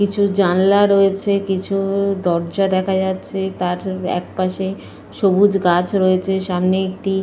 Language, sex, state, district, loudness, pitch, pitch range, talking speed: Bengali, female, Jharkhand, Jamtara, -18 LUFS, 190 Hz, 185-195 Hz, 125 wpm